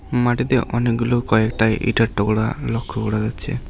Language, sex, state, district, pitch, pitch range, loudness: Bengali, male, West Bengal, Alipurduar, 115 Hz, 110-120 Hz, -20 LUFS